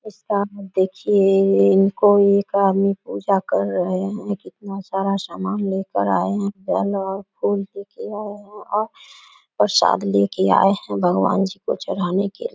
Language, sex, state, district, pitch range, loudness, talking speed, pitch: Hindi, female, Bihar, Samastipur, 190-205 Hz, -20 LUFS, 165 wpm, 195 Hz